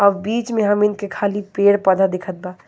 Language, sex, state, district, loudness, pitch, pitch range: Bhojpuri, female, Jharkhand, Palamu, -18 LUFS, 200 Hz, 190-205 Hz